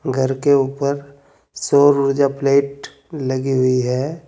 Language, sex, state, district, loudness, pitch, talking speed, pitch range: Hindi, male, Uttar Pradesh, Saharanpur, -17 LUFS, 140 Hz, 125 wpm, 135-140 Hz